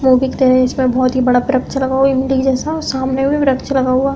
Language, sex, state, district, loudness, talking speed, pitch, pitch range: Hindi, female, Uttar Pradesh, Hamirpur, -15 LUFS, 230 wpm, 265 Hz, 255-270 Hz